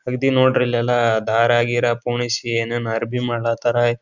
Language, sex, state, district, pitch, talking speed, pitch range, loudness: Kannada, male, Karnataka, Bijapur, 120 Hz, 150 wpm, 115-120 Hz, -19 LUFS